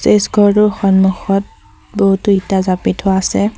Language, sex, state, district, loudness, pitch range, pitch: Assamese, female, Assam, Sonitpur, -13 LUFS, 190-205 Hz, 195 Hz